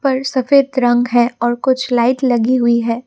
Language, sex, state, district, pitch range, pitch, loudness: Hindi, female, Assam, Kamrup Metropolitan, 240-260 Hz, 245 Hz, -15 LUFS